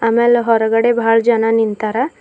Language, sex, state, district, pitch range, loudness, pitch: Kannada, female, Karnataka, Bidar, 225-235 Hz, -14 LUFS, 230 Hz